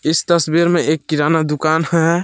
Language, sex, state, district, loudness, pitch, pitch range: Hindi, male, Jharkhand, Palamu, -16 LUFS, 160 Hz, 155-170 Hz